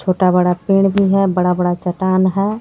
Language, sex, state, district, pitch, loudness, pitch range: Hindi, female, Jharkhand, Garhwa, 185 Hz, -15 LUFS, 180-195 Hz